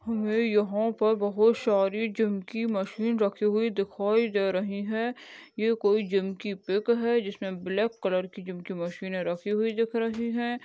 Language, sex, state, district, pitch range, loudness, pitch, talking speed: Hindi, female, Goa, North and South Goa, 195-225 Hz, -28 LUFS, 215 Hz, 180 wpm